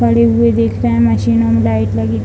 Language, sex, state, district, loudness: Hindi, female, Bihar, Jahanabad, -13 LUFS